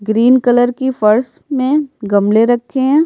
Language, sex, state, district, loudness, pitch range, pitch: Hindi, female, Bihar, Kishanganj, -13 LUFS, 220-260 Hz, 245 Hz